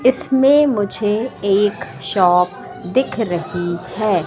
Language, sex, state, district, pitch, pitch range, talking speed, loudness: Hindi, female, Madhya Pradesh, Katni, 205 Hz, 180-250 Hz, 100 wpm, -17 LUFS